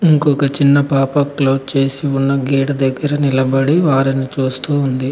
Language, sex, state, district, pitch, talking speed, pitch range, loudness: Telugu, male, Telangana, Mahabubabad, 135 Hz, 140 wpm, 135-145 Hz, -15 LUFS